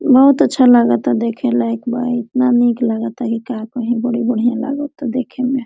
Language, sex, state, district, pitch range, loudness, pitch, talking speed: Hindi, female, Jharkhand, Sahebganj, 235-255 Hz, -16 LUFS, 240 Hz, 200 wpm